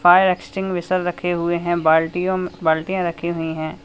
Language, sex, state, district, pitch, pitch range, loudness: Hindi, male, Uttar Pradesh, Lalitpur, 175 Hz, 165-185 Hz, -20 LUFS